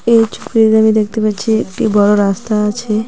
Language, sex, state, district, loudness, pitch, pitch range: Bengali, female, West Bengal, Cooch Behar, -13 LUFS, 215 Hz, 210-220 Hz